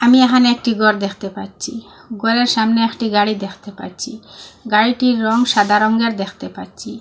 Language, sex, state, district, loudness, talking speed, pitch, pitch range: Bengali, female, Assam, Hailakandi, -16 LUFS, 155 wpm, 225 Hz, 205-240 Hz